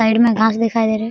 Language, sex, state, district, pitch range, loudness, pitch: Hindi, female, Bihar, Araria, 220-230 Hz, -16 LUFS, 225 Hz